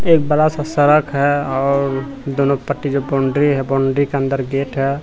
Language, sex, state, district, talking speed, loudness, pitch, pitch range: Hindi, male, Bihar, Katihar, 190 wpm, -17 LUFS, 140 Hz, 135-145 Hz